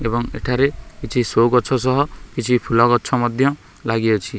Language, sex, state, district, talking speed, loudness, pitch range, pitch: Odia, male, Odisha, Khordha, 150 wpm, -19 LUFS, 115-130 Hz, 125 Hz